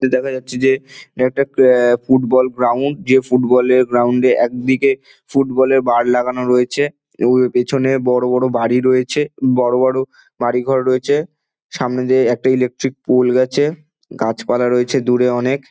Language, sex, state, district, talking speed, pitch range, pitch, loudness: Bengali, male, West Bengal, Dakshin Dinajpur, 145 wpm, 125-135 Hz, 130 Hz, -15 LUFS